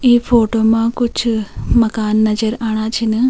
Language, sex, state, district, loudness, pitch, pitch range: Garhwali, female, Uttarakhand, Tehri Garhwal, -15 LUFS, 225 Hz, 220-235 Hz